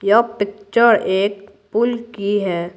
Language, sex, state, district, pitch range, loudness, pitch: Hindi, female, Bihar, Patna, 200-230 Hz, -18 LUFS, 205 Hz